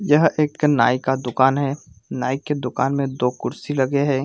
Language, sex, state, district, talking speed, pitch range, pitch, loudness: Hindi, male, Jharkhand, Sahebganj, 195 wpm, 130-145 Hz, 135 Hz, -20 LUFS